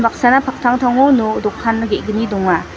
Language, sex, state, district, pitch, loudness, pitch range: Garo, female, Meghalaya, West Garo Hills, 230 Hz, -15 LUFS, 215-250 Hz